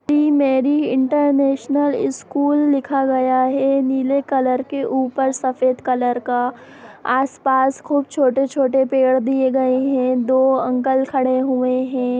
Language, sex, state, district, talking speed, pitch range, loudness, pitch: Hindi, female, Bihar, Sitamarhi, 130 wpm, 255-275 Hz, -18 LUFS, 265 Hz